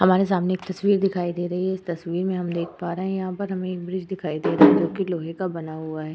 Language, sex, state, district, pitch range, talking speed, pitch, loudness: Hindi, female, Uttar Pradesh, Etah, 170-190 Hz, 305 wpm, 180 Hz, -24 LUFS